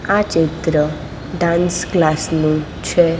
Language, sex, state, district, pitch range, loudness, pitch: Gujarati, female, Gujarat, Gandhinagar, 155-175 Hz, -17 LUFS, 165 Hz